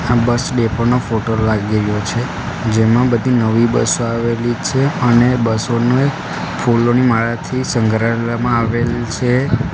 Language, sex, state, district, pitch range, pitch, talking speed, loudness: Gujarati, male, Gujarat, Gandhinagar, 115-125 Hz, 120 Hz, 135 wpm, -15 LUFS